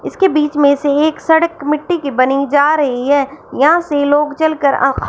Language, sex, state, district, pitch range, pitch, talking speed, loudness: Hindi, female, Punjab, Fazilka, 285-310 Hz, 295 Hz, 210 wpm, -14 LUFS